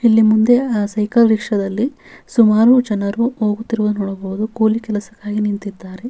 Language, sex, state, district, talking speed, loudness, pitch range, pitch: Kannada, female, Karnataka, Bellary, 120 wpm, -16 LUFS, 205-230 Hz, 215 Hz